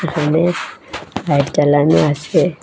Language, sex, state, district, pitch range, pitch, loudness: Bengali, female, Assam, Hailakandi, 145-170 Hz, 150 Hz, -15 LUFS